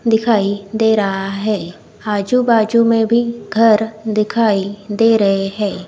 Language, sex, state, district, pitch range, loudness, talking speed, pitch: Hindi, female, Odisha, Khordha, 200-225 Hz, -15 LUFS, 135 wpm, 215 Hz